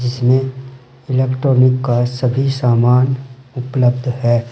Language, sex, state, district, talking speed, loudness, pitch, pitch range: Hindi, male, Uttar Pradesh, Saharanpur, 95 wpm, -15 LUFS, 130 Hz, 125-130 Hz